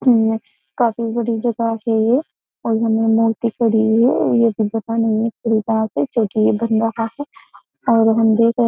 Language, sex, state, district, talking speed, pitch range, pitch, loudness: Hindi, female, Uttar Pradesh, Jyotiba Phule Nagar, 110 wpm, 220-235 Hz, 225 Hz, -17 LUFS